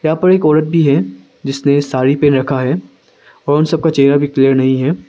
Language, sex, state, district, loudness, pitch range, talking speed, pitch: Hindi, male, Arunachal Pradesh, Longding, -13 LUFS, 130-155 Hz, 225 wpm, 140 Hz